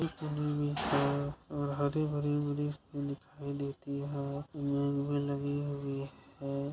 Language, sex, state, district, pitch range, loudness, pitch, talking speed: Hindi, male, Bihar, Saran, 140-145 Hz, -35 LUFS, 145 Hz, 105 wpm